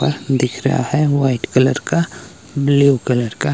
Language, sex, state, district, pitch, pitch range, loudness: Hindi, male, Himachal Pradesh, Shimla, 130 Hz, 120-140 Hz, -17 LUFS